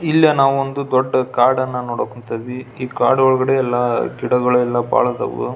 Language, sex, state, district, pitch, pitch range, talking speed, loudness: Kannada, male, Karnataka, Belgaum, 130 Hz, 125-135 Hz, 150 wpm, -17 LUFS